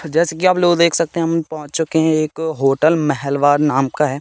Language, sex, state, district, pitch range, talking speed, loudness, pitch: Hindi, male, Madhya Pradesh, Katni, 145-165 Hz, 240 wpm, -16 LUFS, 160 Hz